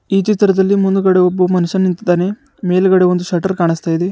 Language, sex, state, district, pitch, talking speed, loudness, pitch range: Kannada, male, Karnataka, Bidar, 185 Hz, 145 wpm, -14 LUFS, 180-195 Hz